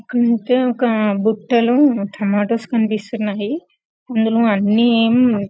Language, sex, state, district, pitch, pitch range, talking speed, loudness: Telugu, female, Telangana, Karimnagar, 225 Hz, 210-240 Hz, 85 wpm, -17 LUFS